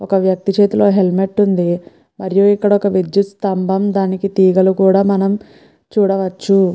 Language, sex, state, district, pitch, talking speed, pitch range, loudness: Telugu, female, Andhra Pradesh, Guntur, 195 Hz, 125 wpm, 190-200 Hz, -14 LUFS